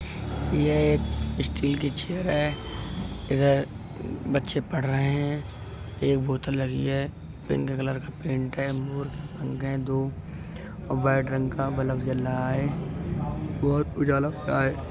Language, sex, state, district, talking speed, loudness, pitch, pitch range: Hindi, male, Uttar Pradesh, Budaun, 130 wpm, -27 LUFS, 135 Hz, 130-140 Hz